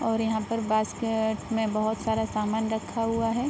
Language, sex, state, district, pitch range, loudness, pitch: Hindi, female, Bihar, Araria, 220-225 Hz, -27 LUFS, 220 Hz